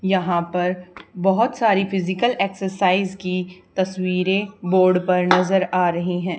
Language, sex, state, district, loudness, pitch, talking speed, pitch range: Hindi, female, Haryana, Charkhi Dadri, -20 LUFS, 185 Hz, 130 wpm, 180-190 Hz